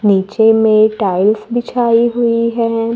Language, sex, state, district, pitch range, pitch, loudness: Hindi, female, Maharashtra, Gondia, 215-235 Hz, 225 Hz, -13 LUFS